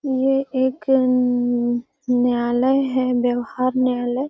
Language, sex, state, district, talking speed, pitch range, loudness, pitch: Magahi, female, Bihar, Gaya, 100 wpm, 245-265 Hz, -20 LUFS, 255 Hz